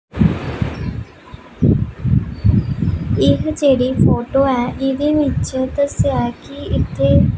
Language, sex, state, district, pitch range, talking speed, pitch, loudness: Punjabi, female, Punjab, Pathankot, 260-285 Hz, 80 wpm, 270 Hz, -17 LUFS